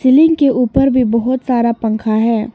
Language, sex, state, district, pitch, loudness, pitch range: Hindi, female, Arunachal Pradesh, Papum Pare, 245 Hz, -13 LUFS, 230-265 Hz